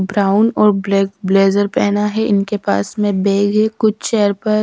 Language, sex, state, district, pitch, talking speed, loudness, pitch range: Hindi, female, Punjab, Fazilka, 205 Hz, 180 wpm, -15 LUFS, 195-210 Hz